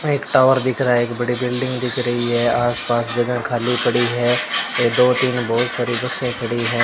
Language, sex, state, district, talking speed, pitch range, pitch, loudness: Hindi, male, Rajasthan, Bikaner, 220 wpm, 120-125 Hz, 120 Hz, -18 LUFS